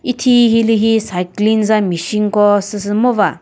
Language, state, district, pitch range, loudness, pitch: Chakhesang, Nagaland, Dimapur, 205-225 Hz, -14 LUFS, 210 Hz